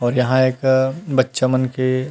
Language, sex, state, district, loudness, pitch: Chhattisgarhi, male, Chhattisgarh, Rajnandgaon, -18 LUFS, 130 Hz